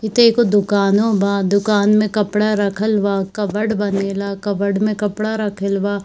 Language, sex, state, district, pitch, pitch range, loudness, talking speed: Hindi, female, Bihar, Darbhanga, 205 Hz, 200-215 Hz, -17 LUFS, 170 wpm